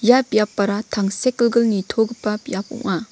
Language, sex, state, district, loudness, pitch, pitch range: Garo, female, Meghalaya, West Garo Hills, -20 LUFS, 220 Hz, 205-235 Hz